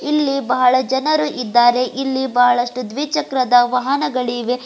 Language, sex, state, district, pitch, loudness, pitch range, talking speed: Kannada, female, Karnataka, Bidar, 255 Hz, -17 LUFS, 245-275 Hz, 115 wpm